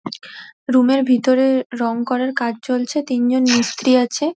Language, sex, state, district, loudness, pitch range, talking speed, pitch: Bengali, female, West Bengal, Dakshin Dinajpur, -17 LUFS, 245-260 Hz, 135 wpm, 255 Hz